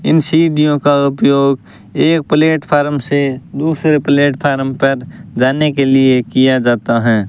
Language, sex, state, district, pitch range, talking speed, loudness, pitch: Hindi, male, Rajasthan, Bikaner, 130-150 Hz, 130 wpm, -13 LUFS, 140 Hz